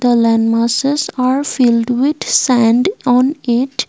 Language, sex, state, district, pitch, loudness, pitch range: English, female, Assam, Kamrup Metropolitan, 250 Hz, -14 LUFS, 235-270 Hz